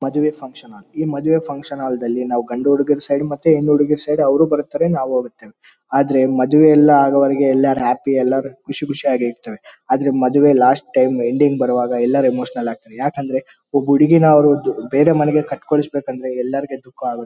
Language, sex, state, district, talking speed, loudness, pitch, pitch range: Kannada, male, Karnataka, Bellary, 175 wpm, -16 LUFS, 140 Hz, 130-150 Hz